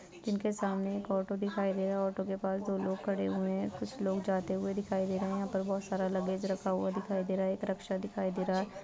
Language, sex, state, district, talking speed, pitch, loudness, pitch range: Hindi, female, Uttar Pradesh, Gorakhpur, 270 wpm, 190 Hz, -34 LUFS, 190-195 Hz